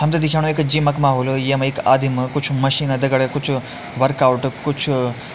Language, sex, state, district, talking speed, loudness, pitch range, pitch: Hindi, male, Uttarakhand, Uttarkashi, 180 wpm, -17 LUFS, 130-145 Hz, 135 Hz